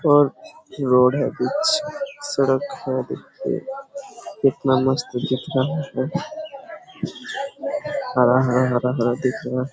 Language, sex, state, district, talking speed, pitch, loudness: Hindi, male, Jharkhand, Sahebganj, 90 wpm, 145 Hz, -22 LUFS